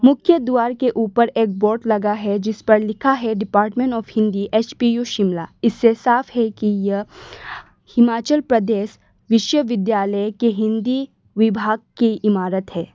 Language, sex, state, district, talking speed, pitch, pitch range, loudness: Hindi, female, Arunachal Pradesh, Lower Dibang Valley, 145 wpm, 220 Hz, 210-240 Hz, -18 LUFS